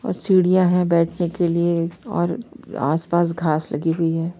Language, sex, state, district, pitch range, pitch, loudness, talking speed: Hindi, female, Bihar, Saharsa, 165-180 Hz, 170 Hz, -20 LUFS, 165 wpm